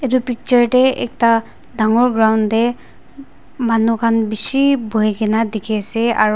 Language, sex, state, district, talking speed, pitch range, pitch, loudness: Nagamese, female, Nagaland, Dimapur, 140 wpm, 220-250 Hz, 230 Hz, -15 LUFS